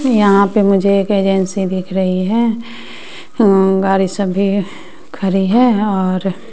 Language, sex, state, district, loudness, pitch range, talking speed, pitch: Hindi, female, Bihar, West Champaran, -14 LUFS, 190-205 Hz, 130 wpm, 195 Hz